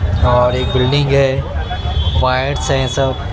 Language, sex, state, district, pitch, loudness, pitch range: Hindi, male, Maharashtra, Mumbai Suburban, 125 Hz, -15 LUFS, 90-135 Hz